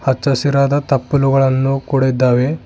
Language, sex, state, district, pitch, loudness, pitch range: Kannada, male, Karnataka, Bidar, 135 Hz, -15 LUFS, 130-140 Hz